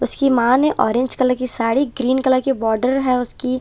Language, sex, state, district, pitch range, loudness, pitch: Hindi, female, Punjab, Kapurthala, 245-265 Hz, -17 LUFS, 255 Hz